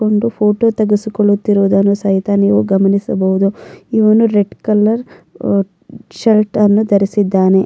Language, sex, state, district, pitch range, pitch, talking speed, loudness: Kannada, female, Karnataka, Mysore, 195-215 Hz, 205 Hz, 100 wpm, -13 LUFS